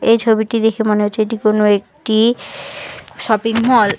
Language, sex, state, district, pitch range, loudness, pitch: Bengali, female, West Bengal, Alipurduar, 215-230 Hz, -15 LUFS, 220 Hz